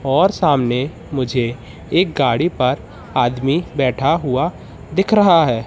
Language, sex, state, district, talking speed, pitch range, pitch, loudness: Hindi, male, Madhya Pradesh, Katni, 125 wpm, 125-165 Hz, 135 Hz, -17 LUFS